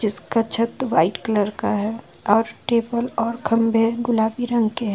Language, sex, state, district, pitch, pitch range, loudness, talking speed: Hindi, female, Jharkhand, Ranchi, 225 Hz, 215-235 Hz, -21 LUFS, 160 wpm